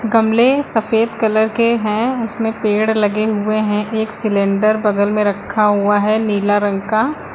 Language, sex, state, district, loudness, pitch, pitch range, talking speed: Hindi, female, Uttar Pradesh, Lucknow, -16 LUFS, 215 Hz, 210-225 Hz, 165 wpm